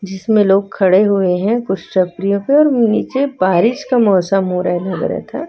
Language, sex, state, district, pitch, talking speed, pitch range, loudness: Hindi, female, Chhattisgarh, Raipur, 195 Hz, 195 wpm, 185-230 Hz, -15 LUFS